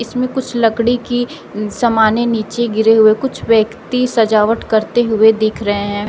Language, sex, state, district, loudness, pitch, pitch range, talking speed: Hindi, female, Uttar Pradesh, Shamli, -14 LUFS, 225 Hz, 215-240 Hz, 170 wpm